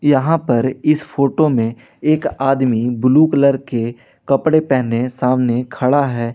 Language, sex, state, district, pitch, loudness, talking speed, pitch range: Hindi, male, Jharkhand, Ranchi, 135 Hz, -16 LUFS, 140 wpm, 120-145 Hz